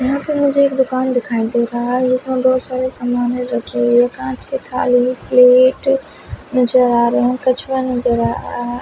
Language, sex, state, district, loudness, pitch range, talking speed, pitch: Hindi, female, Bihar, West Champaran, -16 LUFS, 240-260 Hz, 185 wpm, 250 Hz